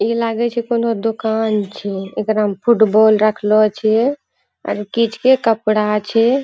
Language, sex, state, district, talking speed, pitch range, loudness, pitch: Angika, female, Bihar, Purnia, 140 wpm, 210-230 Hz, -16 LUFS, 220 Hz